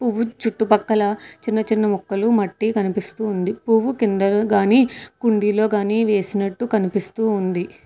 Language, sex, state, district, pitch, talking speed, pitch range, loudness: Telugu, female, Telangana, Hyderabad, 215 Hz, 120 wpm, 200-225 Hz, -20 LUFS